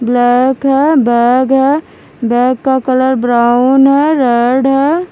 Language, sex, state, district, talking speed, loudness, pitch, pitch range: Hindi, female, Haryana, Charkhi Dadri, 130 wpm, -11 LUFS, 260 Hz, 245-275 Hz